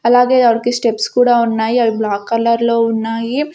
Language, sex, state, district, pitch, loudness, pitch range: Telugu, female, Andhra Pradesh, Sri Satya Sai, 230 Hz, -14 LUFS, 225-245 Hz